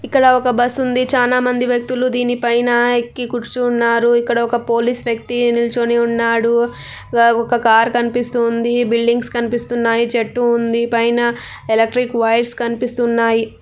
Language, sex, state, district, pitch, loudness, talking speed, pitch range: Telugu, female, Andhra Pradesh, Anantapur, 235 Hz, -16 LUFS, 130 wpm, 235-245 Hz